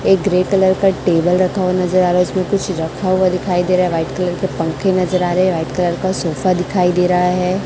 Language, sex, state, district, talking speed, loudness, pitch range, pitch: Hindi, female, Chhattisgarh, Raipur, 275 wpm, -16 LUFS, 180-185 Hz, 180 Hz